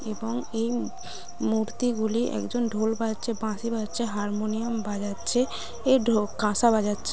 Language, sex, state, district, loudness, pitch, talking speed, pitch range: Bengali, female, West Bengal, Malda, -27 LUFS, 225 Hz, 135 wpm, 215-235 Hz